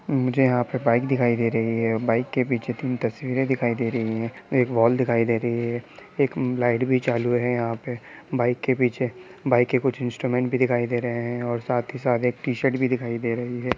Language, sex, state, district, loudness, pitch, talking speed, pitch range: Hindi, male, Bihar, East Champaran, -24 LUFS, 120 Hz, 235 wpm, 120-130 Hz